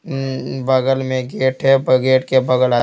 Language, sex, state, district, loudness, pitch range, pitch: Hindi, male, Bihar, Patna, -17 LUFS, 130-135 Hz, 130 Hz